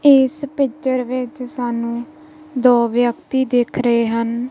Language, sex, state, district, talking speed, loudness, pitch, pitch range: Punjabi, female, Punjab, Kapurthala, 120 wpm, -18 LUFS, 250 Hz, 240-270 Hz